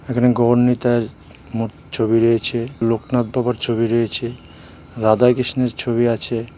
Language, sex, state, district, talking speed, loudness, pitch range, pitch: Bengali, male, Tripura, West Tripura, 125 wpm, -18 LUFS, 115-125 Hz, 120 Hz